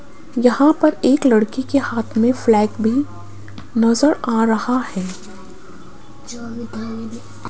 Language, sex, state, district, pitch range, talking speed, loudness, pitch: Hindi, female, Rajasthan, Jaipur, 185-260 Hz, 105 wpm, -17 LUFS, 230 Hz